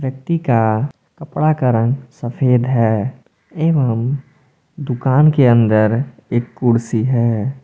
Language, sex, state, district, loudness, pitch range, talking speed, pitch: Hindi, male, Jharkhand, Palamu, -16 LUFS, 115-140 Hz, 110 wpm, 125 Hz